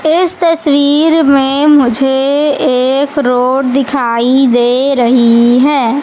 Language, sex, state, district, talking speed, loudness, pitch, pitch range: Hindi, female, Madhya Pradesh, Katni, 100 wpm, -10 LUFS, 270 Hz, 250-290 Hz